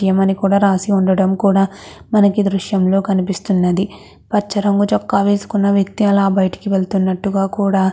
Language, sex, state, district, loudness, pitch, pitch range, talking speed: Telugu, female, Andhra Pradesh, Krishna, -16 LUFS, 195 Hz, 190-200 Hz, 130 wpm